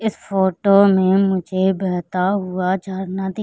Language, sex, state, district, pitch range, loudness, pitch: Hindi, female, Madhya Pradesh, Katni, 185-195 Hz, -18 LUFS, 190 Hz